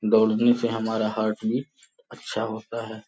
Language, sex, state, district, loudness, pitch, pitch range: Hindi, male, Uttar Pradesh, Gorakhpur, -25 LUFS, 110 Hz, 110-115 Hz